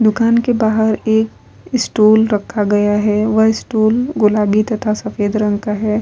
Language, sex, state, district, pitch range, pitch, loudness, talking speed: Hindi, female, Bihar, Vaishali, 210-220 Hz, 215 Hz, -15 LUFS, 170 wpm